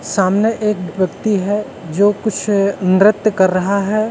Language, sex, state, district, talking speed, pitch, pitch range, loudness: Hindi, male, Uttarakhand, Uttarkashi, 145 wpm, 200 Hz, 190-215 Hz, -16 LUFS